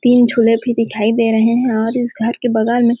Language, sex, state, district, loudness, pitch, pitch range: Hindi, female, Chhattisgarh, Sarguja, -15 LUFS, 235 Hz, 225-240 Hz